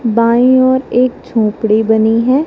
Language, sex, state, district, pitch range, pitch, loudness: Hindi, female, Punjab, Fazilka, 220-255 Hz, 230 Hz, -12 LUFS